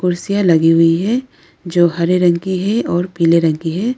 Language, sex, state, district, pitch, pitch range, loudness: Hindi, female, Arunachal Pradesh, Lower Dibang Valley, 175 Hz, 165-190 Hz, -15 LUFS